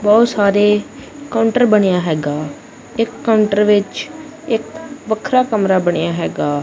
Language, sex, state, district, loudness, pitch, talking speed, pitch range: Punjabi, female, Punjab, Kapurthala, -16 LUFS, 210 Hz, 120 wpm, 190-240 Hz